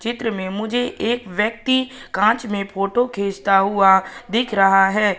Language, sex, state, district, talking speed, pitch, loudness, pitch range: Hindi, female, Madhya Pradesh, Katni, 150 wpm, 210 Hz, -19 LUFS, 195-235 Hz